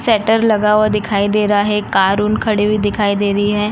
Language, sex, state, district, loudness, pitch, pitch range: Hindi, female, Uttar Pradesh, Jalaun, -15 LUFS, 210 Hz, 205-215 Hz